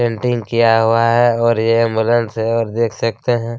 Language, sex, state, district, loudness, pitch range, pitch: Hindi, male, Chhattisgarh, Kabirdham, -15 LUFS, 115-120 Hz, 115 Hz